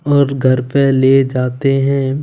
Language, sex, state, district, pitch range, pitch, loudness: Hindi, male, Punjab, Kapurthala, 130-140 Hz, 135 Hz, -13 LUFS